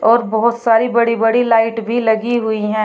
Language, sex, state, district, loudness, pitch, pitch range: Hindi, female, Uttar Pradesh, Shamli, -15 LUFS, 230 Hz, 225-235 Hz